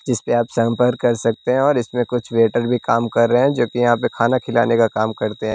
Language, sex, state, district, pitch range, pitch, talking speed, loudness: Hindi, male, Bihar, West Champaran, 115-125 Hz, 120 Hz, 280 wpm, -18 LUFS